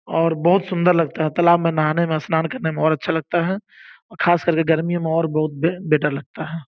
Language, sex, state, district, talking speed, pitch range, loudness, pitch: Hindi, male, Uttar Pradesh, Gorakhpur, 220 wpm, 155-170 Hz, -20 LUFS, 165 Hz